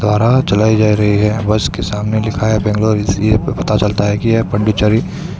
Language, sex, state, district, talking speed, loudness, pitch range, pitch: Hindi, male, Karnataka, Bangalore, 190 wpm, -14 LUFS, 105-110 Hz, 105 Hz